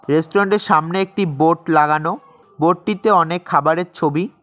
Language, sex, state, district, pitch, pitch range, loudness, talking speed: Bengali, male, West Bengal, Cooch Behar, 165 Hz, 155-190 Hz, -17 LUFS, 150 wpm